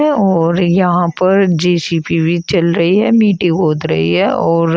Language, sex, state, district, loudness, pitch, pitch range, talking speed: Hindi, female, Uttar Pradesh, Shamli, -13 LUFS, 175 Hz, 165-185 Hz, 165 wpm